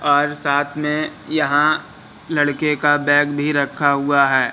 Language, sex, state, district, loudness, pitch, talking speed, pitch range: Hindi, male, Madhya Pradesh, Katni, -18 LUFS, 145 Hz, 145 wpm, 140-150 Hz